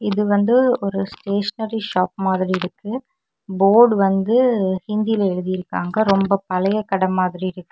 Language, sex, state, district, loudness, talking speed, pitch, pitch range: Tamil, female, Tamil Nadu, Kanyakumari, -19 LUFS, 125 wpm, 195 Hz, 185-220 Hz